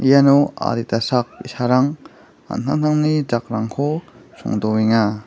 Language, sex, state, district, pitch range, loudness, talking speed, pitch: Garo, male, Meghalaya, West Garo Hills, 115-145 Hz, -19 LUFS, 80 wpm, 125 Hz